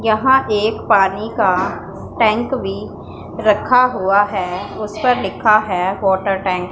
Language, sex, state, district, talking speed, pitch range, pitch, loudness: Hindi, female, Punjab, Pathankot, 145 wpm, 190-220 Hz, 205 Hz, -16 LUFS